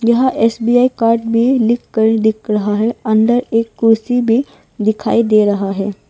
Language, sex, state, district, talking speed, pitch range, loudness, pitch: Hindi, female, Arunachal Pradesh, Longding, 155 wpm, 215-235 Hz, -14 LUFS, 225 Hz